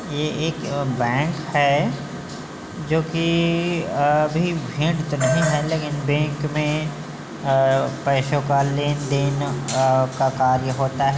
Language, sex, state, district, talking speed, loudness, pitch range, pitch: Chhattisgarhi, male, Chhattisgarh, Bilaspur, 130 wpm, -21 LUFS, 140-155 Hz, 145 Hz